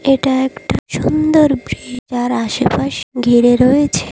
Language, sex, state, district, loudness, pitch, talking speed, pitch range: Bengali, female, Odisha, Malkangiri, -15 LUFS, 255 Hz, 115 wpm, 245-275 Hz